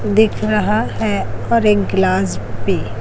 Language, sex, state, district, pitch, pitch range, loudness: Hindi, female, Chhattisgarh, Raipur, 210 Hz, 195-215 Hz, -17 LUFS